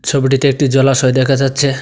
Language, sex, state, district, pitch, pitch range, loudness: Bengali, male, Tripura, Dhalai, 135 Hz, 135-140 Hz, -13 LUFS